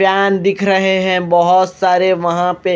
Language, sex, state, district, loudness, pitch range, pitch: Hindi, male, Punjab, Kapurthala, -13 LUFS, 180-195 Hz, 185 Hz